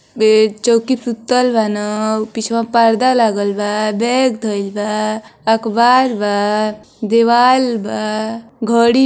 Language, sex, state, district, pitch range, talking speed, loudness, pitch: Bhojpuri, female, Uttar Pradesh, Deoria, 215-235 Hz, 125 wpm, -15 LUFS, 225 Hz